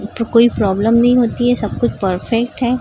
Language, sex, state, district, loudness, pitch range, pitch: Hindi, female, Maharashtra, Gondia, -15 LUFS, 210-245 Hz, 230 Hz